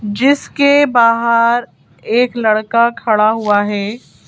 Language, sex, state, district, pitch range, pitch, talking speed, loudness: Hindi, female, Madhya Pradesh, Bhopal, 210-240 Hz, 230 Hz, 100 wpm, -13 LUFS